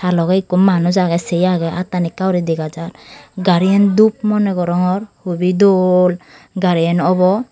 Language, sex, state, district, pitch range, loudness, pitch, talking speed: Chakma, female, Tripura, Dhalai, 175-190 Hz, -15 LUFS, 180 Hz, 150 wpm